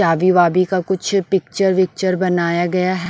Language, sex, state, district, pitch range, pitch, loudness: Hindi, female, Maharashtra, Washim, 175-190 Hz, 185 Hz, -17 LUFS